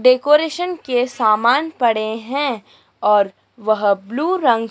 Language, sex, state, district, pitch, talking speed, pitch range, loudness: Hindi, female, Madhya Pradesh, Dhar, 245 Hz, 115 wpm, 215-285 Hz, -18 LUFS